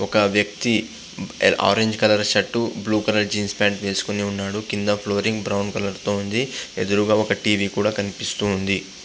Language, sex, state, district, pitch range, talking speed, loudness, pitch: Telugu, male, Andhra Pradesh, Visakhapatnam, 100-105 Hz, 145 wpm, -21 LUFS, 105 Hz